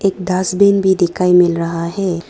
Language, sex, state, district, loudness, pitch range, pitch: Hindi, female, Arunachal Pradesh, Lower Dibang Valley, -14 LUFS, 170-190 Hz, 180 Hz